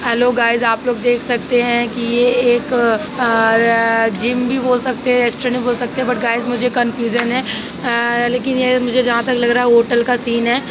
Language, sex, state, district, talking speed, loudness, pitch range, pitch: Hindi, female, Uttar Pradesh, Jalaun, 215 wpm, -15 LUFS, 235-250 Hz, 240 Hz